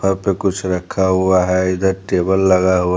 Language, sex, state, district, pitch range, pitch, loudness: Hindi, male, Bihar, Patna, 90-95 Hz, 95 Hz, -16 LUFS